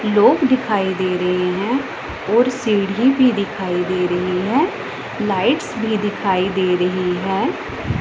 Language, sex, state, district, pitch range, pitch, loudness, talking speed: Hindi, female, Punjab, Pathankot, 185-235 Hz, 200 Hz, -18 LUFS, 135 wpm